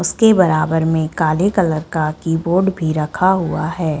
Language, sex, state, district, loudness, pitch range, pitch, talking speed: Hindi, female, Chhattisgarh, Bilaspur, -16 LUFS, 155-185 Hz, 165 Hz, 165 wpm